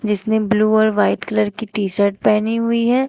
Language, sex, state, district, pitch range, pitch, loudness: Hindi, female, Uttar Pradesh, Shamli, 210-225 Hz, 215 Hz, -17 LUFS